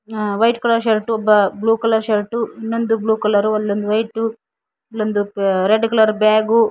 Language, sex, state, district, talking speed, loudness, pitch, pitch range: Kannada, female, Karnataka, Koppal, 135 wpm, -17 LUFS, 220 Hz, 210-225 Hz